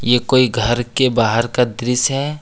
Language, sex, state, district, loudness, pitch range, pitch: Hindi, male, Jharkhand, Ranchi, -16 LUFS, 120-130 Hz, 125 Hz